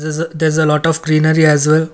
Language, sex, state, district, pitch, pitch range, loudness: English, male, Karnataka, Bangalore, 155 Hz, 155-160 Hz, -13 LUFS